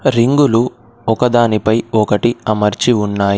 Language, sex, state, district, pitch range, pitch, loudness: Telugu, male, Telangana, Komaram Bheem, 110-120 Hz, 115 Hz, -14 LUFS